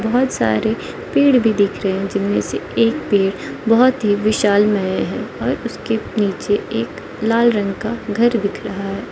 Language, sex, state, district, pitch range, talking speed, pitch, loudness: Hindi, female, Arunachal Pradesh, Lower Dibang Valley, 195-230 Hz, 170 wpm, 205 Hz, -18 LUFS